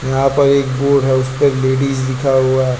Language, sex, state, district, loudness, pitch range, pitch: Hindi, male, Uttar Pradesh, Lucknow, -14 LUFS, 130-140 Hz, 135 Hz